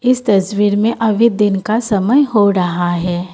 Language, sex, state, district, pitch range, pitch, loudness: Hindi, female, Assam, Kamrup Metropolitan, 190-230 Hz, 205 Hz, -14 LUFS